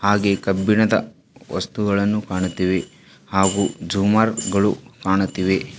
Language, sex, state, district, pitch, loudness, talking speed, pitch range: Kannada, female, Karnataka, Bidar, 100 Hz, -20 LUFS, 85 wpm, 95-105 Hz